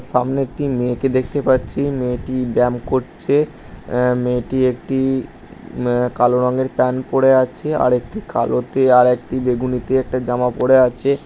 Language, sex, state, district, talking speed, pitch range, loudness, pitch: Bengali, male, West Bengal, Jhargram, 155 wpm, 125-130 Hz, -18 LUFS, 125 Hz